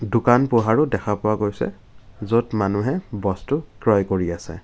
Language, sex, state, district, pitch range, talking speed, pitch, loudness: Assamese, male, Assam, Kamrup Metropolitan, 100-115 Hz, 140 wpm, 105 Hz, -21 LUFS